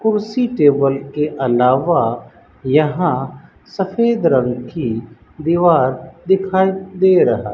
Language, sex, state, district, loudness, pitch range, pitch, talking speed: Hindi, male, Rajasthan, Bikaner, -16 LUFS, 130-190 Hz, 150 Hz, 95 wpm